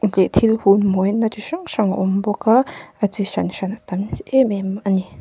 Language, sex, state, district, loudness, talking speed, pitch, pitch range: Mizo, female, Mizoram, Aizawl, -19 LUFS, 230 wpm, 205 Hz, 195-220 Hz